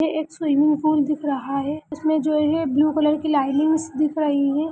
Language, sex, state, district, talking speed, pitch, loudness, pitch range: Hindi, female, Bihar, Gaya, 205 wpm, 300 Hz, -21 LUFS, 290-310 Hz